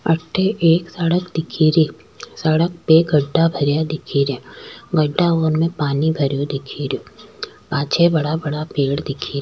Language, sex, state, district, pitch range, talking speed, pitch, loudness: Rajasthani, female, Rajasthan, Churu, 145-165 Hz, 145 wpm, 155 Hz, -18 LUFS